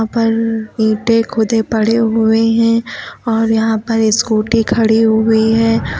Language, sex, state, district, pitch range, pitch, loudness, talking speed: Hindi, female, Uttar Pradesh, Lucknow, 220-230 Hz, 225 Hz, -14 LUFS, 130 wpm